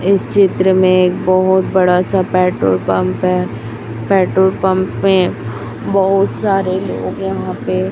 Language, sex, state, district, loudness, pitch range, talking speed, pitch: Hindi, female, Chhattisgarh, Raipur, -14 LUFS, 115-190 Hz, 135 wpm, 185 Hz